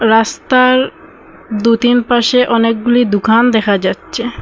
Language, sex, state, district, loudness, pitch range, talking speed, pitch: Bengali, female, Assam, Hailakandi, -12 LUFS, 225-245 Hz, 95 wpm, 235 Hz